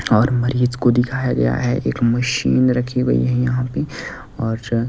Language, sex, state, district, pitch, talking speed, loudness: Hindi, male, Delhi, New Delhi, 115 Hz, 170 wpm, -18 LUFS